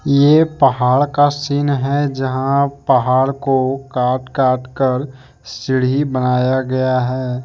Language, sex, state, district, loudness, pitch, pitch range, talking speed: Hindi, male, Jharkhand, Deoghar, -16 LUFS, 130 Hz, 130-140 Hz, 120 wpm